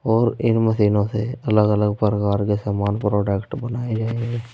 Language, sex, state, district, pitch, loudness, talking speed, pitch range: Hindi, male, Uttar Pradesh, Saharanpur, 105 Hz, -21 LUFS, 170 wpm, 105-115 Hz